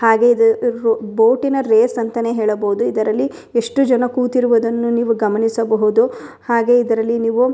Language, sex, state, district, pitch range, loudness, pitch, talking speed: Kannada, female, Karnataka, Bellary, 225-245 Hz, -16 LUFS, 230 Hz, 135 wpm